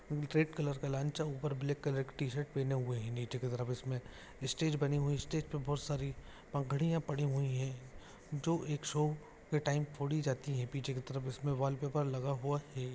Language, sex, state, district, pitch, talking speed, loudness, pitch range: Hindi, male, Jharkhand, Jamtara, 140 Hz, 215 wpm, -37 LUFS, 135-150 Hz